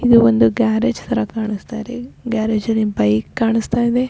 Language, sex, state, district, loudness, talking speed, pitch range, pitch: Kannada, female, Karnataka, Raichur, -18 LUFS, 130 wpm, 215-240 Hz, 225 Hz